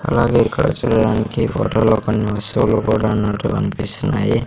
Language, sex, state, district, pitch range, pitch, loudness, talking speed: Telugu, male, Andhra Pradesh, Sri Satya Sai, 105-115 Hz, 110 Hz, -17 LUFS, 135 wpm